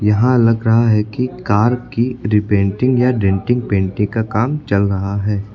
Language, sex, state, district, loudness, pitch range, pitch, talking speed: Hindi, male, Uttar Pradesh, Lucknow, -16 LUFS, 100-120 Hz, 110 Hz, 175 wpm